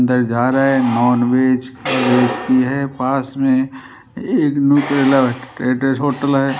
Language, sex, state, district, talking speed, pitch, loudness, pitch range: Hindi, male, Rajasthan, Jaipur, 110 wpm, 130 Hz, -16 LUFS, 125-135 Hz